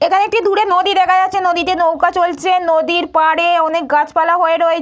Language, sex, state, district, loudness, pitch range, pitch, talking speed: Bengali, female, West Bengal, Purulia, -13 LUFS, 330-370 Hz, 345 Hz, 200 wpm